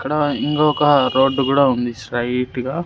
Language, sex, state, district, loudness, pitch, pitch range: Telugu, male, Andhra Pradesh, Sri Satya Sai, -17 LUFS, 135 Hz, 125-150 Hz